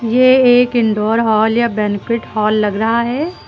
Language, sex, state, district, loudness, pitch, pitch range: Hindi, female, Uttar Pradesh, Lucknow, -14 LUFS, 230 Hz, 215-245 Hz